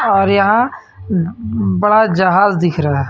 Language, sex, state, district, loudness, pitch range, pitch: Hindi, male, Jharkhand, Ranchi, -14 LUFS, 150-205 Hz, 185 Hz